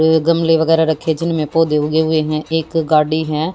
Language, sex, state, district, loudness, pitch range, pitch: Hindi, female, Haryana, Jhajjar, -16 LUFS, 155-165 Hz, 160 Hz